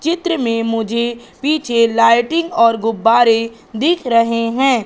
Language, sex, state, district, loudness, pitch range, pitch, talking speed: Hindi, female, Madhya Pradesh, Katni, -15 LUFS, 230-275 Hz, 235 Hz, 125 wpm